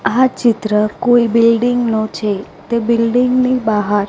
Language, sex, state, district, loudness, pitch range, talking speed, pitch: Gujarati, female, Gujarat, Gandhinagar, -14 LUFS, 215-245 Hz, 145 wpm, 230 Hz